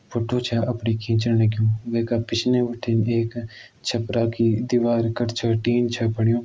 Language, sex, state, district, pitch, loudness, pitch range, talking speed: Garhwali, male, Uttarakhand, Tehri Garhwal, 115 Hz, -22 LUFS, 115-120 Hz, 160 wpm